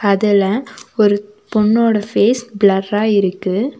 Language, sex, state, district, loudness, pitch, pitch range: Tamil, female, Tamil Nadu, Nilgiris, -15 LUFS, 210 Hz, 200-220 Hz